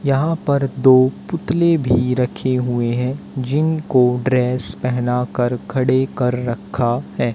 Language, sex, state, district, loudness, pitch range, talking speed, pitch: Hindi, male, Haryana, Jhajjar, -18 LUFS, 125-135 Hz, 130 wpm, 125 Hz